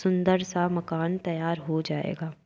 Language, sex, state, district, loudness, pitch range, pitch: Hindi, female, Uttar Pradesh, Jyotiba Phule Nagar, -28 LUFS, 165-185 Hz, 170 Hz